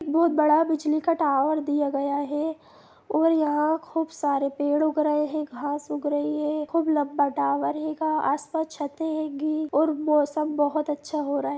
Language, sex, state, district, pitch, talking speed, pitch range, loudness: Hindi, female, Jharkhand, Jamtara, 300 Hz, 175 wpm, 290-310 Hz, -25 LUFS